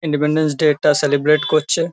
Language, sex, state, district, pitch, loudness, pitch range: Bengali, male, West Bengal, Kolkata, 150 Hz, -16 LUFS, 150-155 Hz